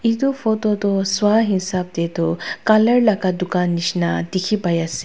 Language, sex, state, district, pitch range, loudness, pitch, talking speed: Nagamese, female, Nagaland, Dimapur, 170-215 Hz, -19 LUFS, 190 Hz, 165 wpm